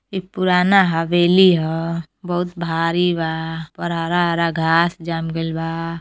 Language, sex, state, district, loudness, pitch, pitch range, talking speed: Bhojpuri, female, Uttar Pradesh, Deoria, -18 LUFS, 170 Hz, 165-175 Hz, 140 wpm